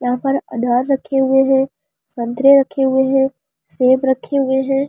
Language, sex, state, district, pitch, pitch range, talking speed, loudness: Hindi, female, Delhi, New Delhi, 265 Hz, 255-270 Hz, 185 wpm, -16 LUFS